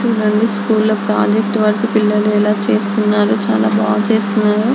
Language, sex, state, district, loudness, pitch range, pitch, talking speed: Telugu, female, Andhra Pradesh, Anantapur, -14 LUFS, 210-220 Hz, 215 Hz, 115 wpm